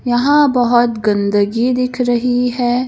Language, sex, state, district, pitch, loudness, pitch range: Hindi, female, Madhya Pradesh, Bhopal, 245 Hz, -14 LUFS, 240-250 Hz